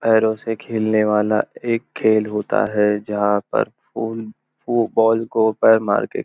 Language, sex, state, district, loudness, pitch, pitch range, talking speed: Hindi, male, Maharashtra, Nagpur, -19 LUFS, 110 Hz, 105-115 Hz, 165 wpm